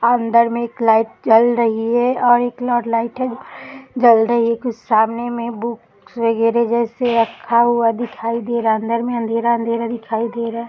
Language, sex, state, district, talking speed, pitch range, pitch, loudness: Hindi, female, Bihar, Gaya, 190 wpm, 230-240 Hz, 235 Hz, -17 LUFS